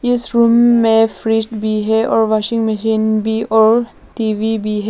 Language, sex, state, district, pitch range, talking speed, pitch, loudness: Hindi, female, Arunachal Pradesh, Lower Dibang Valley, 220-230 Hz, 170 wpm, 220 Hz, -14 LUFS